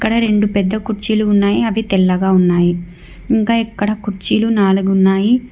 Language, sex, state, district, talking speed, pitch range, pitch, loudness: Telugu, female, Telangana, Hyderabad, 140 wpm, 190-220 Hz, 205 Hz, -15 LUFS